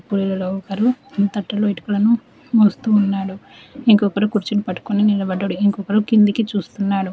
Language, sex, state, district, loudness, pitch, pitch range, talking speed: Telugu, female, Telangana, Adilabad, -18 LUFS, 205 Hz, 195-215 Hz, 110 wpm